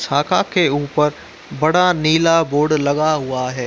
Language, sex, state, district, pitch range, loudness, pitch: Hindi, male, Uttar Pradesh, Muzaffarnagar, 145-160 Hz, -16 LUFS, 150 Hz